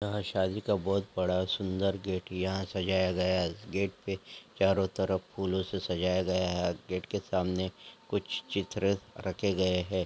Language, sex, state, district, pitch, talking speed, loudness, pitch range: Angika, male, Bihar, Samastipur, 95 Hz, 165 wpm, -32 LUFS, 90-100 Hz